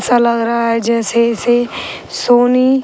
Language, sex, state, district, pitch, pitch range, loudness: Hindi, female, Bihar, Sitamarhi, 235 Hz, 235-245 Hz, -14 LUFS